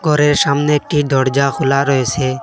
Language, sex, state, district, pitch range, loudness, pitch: Bengali, male, Assam, Hailakandi, 135-145 Hz, -14 LUFS, 140 Hz